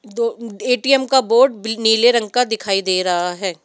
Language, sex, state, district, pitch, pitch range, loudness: Hindi, female, Rajasthan, Jaipur, 225 Hz, 195-250 Hz, -16 LUFS